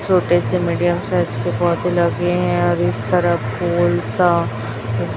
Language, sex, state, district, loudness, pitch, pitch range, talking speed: Hindi, female, Chhattisgarh, Raipur, -18 LUFS, 175 Hz, 120-175 Hz, 150 wpm